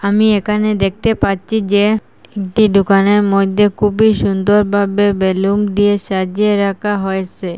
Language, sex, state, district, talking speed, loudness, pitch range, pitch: Bengali, female, Assam, Hailakandi, 125 wpm, -14 LUFS, 195-210 Hz, 205 Hz